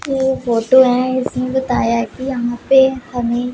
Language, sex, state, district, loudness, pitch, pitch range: Hindi, female, Punjab, Pathankot, -16 LUFS, 255 Hz, 240-265 Hz